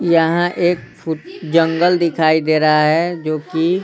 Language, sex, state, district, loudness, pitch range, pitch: Hindi, male, Bihar, Patna, -16 LUFS, 155-175 Hz, 165 Hz